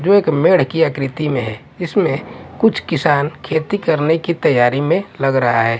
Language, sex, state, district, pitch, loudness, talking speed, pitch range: Hindi, male, Chhattisgarh, Raipur, 155 Hz, -16 LUFS, 185 wpm, 135-170 Hz